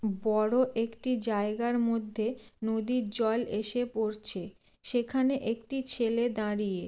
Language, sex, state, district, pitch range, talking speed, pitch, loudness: Bengali, female, West Bengal, Jalpaiguri, 215-240 Hz, 115 wpm, 225 Hz, -29 LUFS